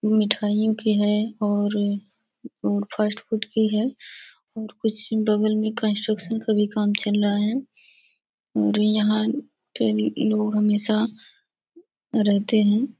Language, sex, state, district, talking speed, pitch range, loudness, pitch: Hindi, female, Bihar, Gopalganj, 120 wpm, 210-220 Hz, -23 LUFS, 215 Hz